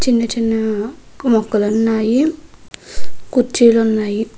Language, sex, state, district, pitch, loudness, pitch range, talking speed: Telugu, female, Andhra Pradesh, Krishna, 225 Hz, -16 LUFS, 220-250 Hz, 70 wpm